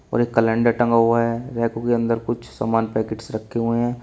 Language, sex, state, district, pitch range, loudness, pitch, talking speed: Hindi, male, Uttar Pradesh, Shamli, 115-120 Hz, -21 LUFS, 115 Hz, 225 wpm